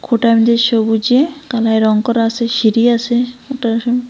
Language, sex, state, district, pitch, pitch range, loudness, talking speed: Bengali, female, Assam, Hailakandi, 235 Hz, 225-245 Hz, -14 LUFS, 115 wpm